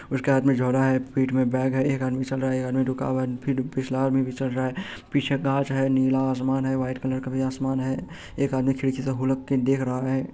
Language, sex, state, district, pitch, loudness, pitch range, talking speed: Hindi, male, Bihar, Saharsa, 130 Hz, -25 LUFS, 130-135 Hz, 275 wpm